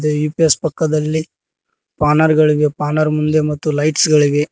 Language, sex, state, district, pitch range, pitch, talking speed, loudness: Kannada, male, Karnataka, Koppal, 150-155 Hz, 150 Hz, 135 wpm, -15 LUFS